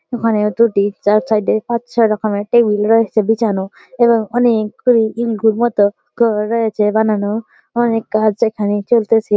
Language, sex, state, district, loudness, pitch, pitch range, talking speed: Bengali, female, West Bengal, Malda, -15 LUFS, 220 Hz, 210-235 Hz, 110 wpm